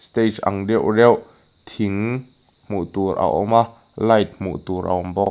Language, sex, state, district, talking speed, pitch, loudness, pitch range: Mizo, male, Mizoram, Aizawl, 180 wpm, 105 Hz, -20 LUFS, 95-115 Hz